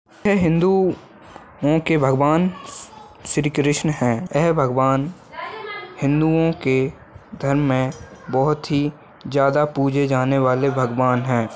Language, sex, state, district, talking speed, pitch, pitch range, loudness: Hindi, male, Chhattisgarh, Balrampur, 110 wpm, 145 Hz, 130-160 Hz, -20 LUFS